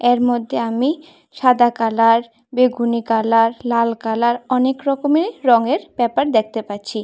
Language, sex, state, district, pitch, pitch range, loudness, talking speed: Bengali, female, Tripura, West Tripura, 240 Hz, 230-255 Hz, -17 LUFS, 130 wpm